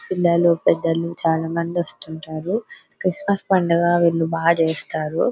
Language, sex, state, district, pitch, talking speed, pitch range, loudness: Telugu, female, Telangana, Nalgonda, 170 Hz, 115 wpm, 165-175 Hz, -19 LUFS